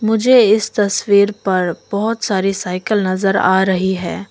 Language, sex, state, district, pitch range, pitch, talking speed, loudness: Hindi, female, Arunachal Pradesh, Longding, 190-215 Hz, 200 Hz, 155 wpm, -15 LUFS